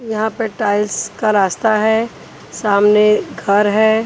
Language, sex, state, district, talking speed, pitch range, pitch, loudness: Hindi, female, Haryana, Charkhi Dadri, 135 wpm, 205-220 Hz, 215 Hz, -15 LUFS